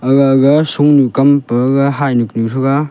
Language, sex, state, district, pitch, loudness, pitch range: Wancho, male, Arunachal Pradesh, Longding, 135 Hz, -12 LUFS, 130-145 Hz